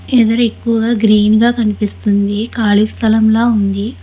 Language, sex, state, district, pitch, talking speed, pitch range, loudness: Telugu, male, Telangana, Hyderabad, 220 Hz, 120 wpm, 210-230 Hz, -13 LUFS